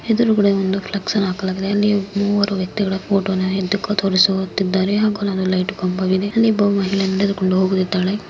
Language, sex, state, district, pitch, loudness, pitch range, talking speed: Kannada, female, Karnataka, Mysore, 195 Hz, -18 LUFS, 190-205 Hz, 145 wpm